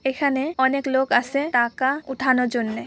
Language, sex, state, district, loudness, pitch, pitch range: Bengali, female, West Bengal, Purulia, -21 LUFS, 265 Hz, 250-275 Hz